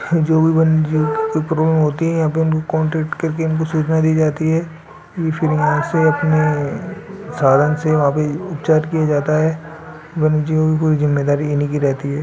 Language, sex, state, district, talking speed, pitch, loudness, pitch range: Hindi, male, Rajasthan, Nagaur, 55 wpm, 155 Hz, -17 LUFS, 150-160 Hz